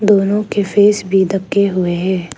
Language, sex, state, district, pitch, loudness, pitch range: Hindi, female, Arunachal Pradesh, Lower Dibang Valley, 195 Hz, -14 LUFS, 185-205 Hz